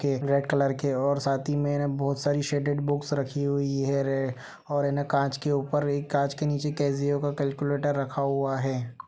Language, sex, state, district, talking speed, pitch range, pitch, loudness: Hindi, male, Uttar Pradesh, Budaun, 210 wpm, 140-145 Hz, 140 Hz, -27 LUFS